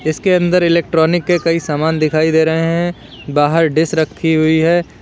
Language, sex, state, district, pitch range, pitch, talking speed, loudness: Hindi, male, Uttar Pradesh, Lalitpur, 155-170 Hz, 160 Hz, 180 wpm, -14 LUFS